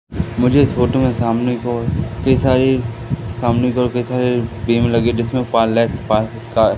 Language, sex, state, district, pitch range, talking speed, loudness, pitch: Hindi, male, Madhya Pradesh, Katni, 115-125 Hz, 150 wpm, -17 LUFS, 120 Hz